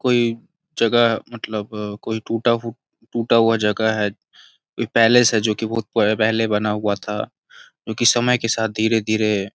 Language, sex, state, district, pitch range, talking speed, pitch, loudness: Hindi, male, Uttar Pradesh, Gorakhpur, 105-115 Hz, 165 wpm, 110 Hz, -19 LUFS